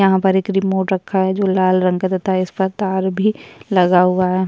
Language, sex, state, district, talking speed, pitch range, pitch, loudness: Hindi, female, Uttarakhand, Tehri Garhwal, 240 wpm, 185-195 Hz, 190 Hz, -17 LUFS